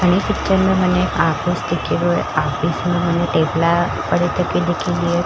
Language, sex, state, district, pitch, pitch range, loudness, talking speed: Marwari, female, Rajasthan, Churu, 175 Hz, 170-180 Hz, -18 LUFS, 170 wpm